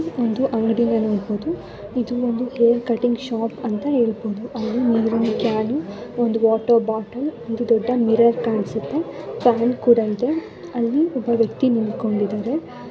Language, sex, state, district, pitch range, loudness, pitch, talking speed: Kannada, female, Karnataka, Shimoga, 225-245 Hz, -21 LUFS, 235 Hz, 130 wpm